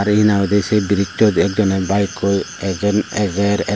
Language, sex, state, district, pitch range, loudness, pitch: Chakma, male, Tripura, Unakoti, 100-105 Hz, -17 LUFS, 100 Hz